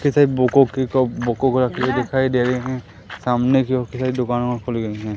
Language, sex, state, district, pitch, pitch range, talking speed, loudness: Hindi, male, Madhya Pradesh, Umaria, 125 Hz, 120-130 Hz, 220 wpm, -19 LUFS